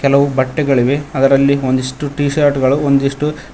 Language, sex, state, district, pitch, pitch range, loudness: Kannada, male, Karnataka, Koppal, 140 Hz, 135-145 Hz, -14 LUFS